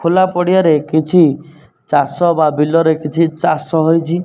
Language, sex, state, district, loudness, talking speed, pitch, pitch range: Odia, male, Odisha, Nuapada, -13 LUFS, 125 wpm, 160 Hz, 155-170 Hz